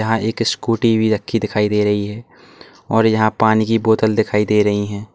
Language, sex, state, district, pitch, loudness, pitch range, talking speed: Hindi, male, Uttar Pradesh, Lalitpur, 110 Hz, -17 LUFS, 105-115 Hz, 210 wpm